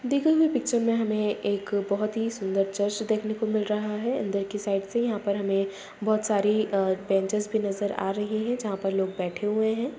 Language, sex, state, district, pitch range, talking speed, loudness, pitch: Hindi, female, Bihar, Madhepura, 200-220 Hz, 220 wpm, -27 LUFS, 210 Hz